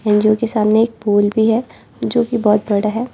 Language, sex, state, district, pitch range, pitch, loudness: Hindi, female, Arunachal Pradesh, Lower Dibang Valley, 210-230 Hz, 220 Hz, -16 LUFS